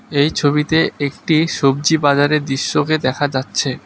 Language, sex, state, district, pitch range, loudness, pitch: Bengali, male, West Bengal, Alipurduar, 140-155 Hz, -16 LUFS, 145 Hz